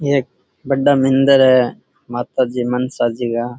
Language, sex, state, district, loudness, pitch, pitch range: Rajasthani, male, Rajasthan, Churu, -16 LUFS, 125 Hz, 120-135 Hz